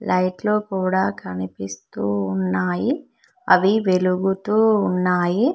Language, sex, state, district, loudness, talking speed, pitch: Telugu, female, Telangana, Mahabubabad, -21 LUFS, 75 wpm, 185 Hz